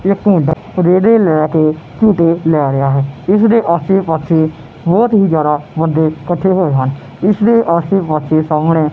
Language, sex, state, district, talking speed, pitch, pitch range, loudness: Punjabi, male, Punjab, Kapurthala, 150 wpm, 165 Hz, 155-195 Hz, -13 LUFS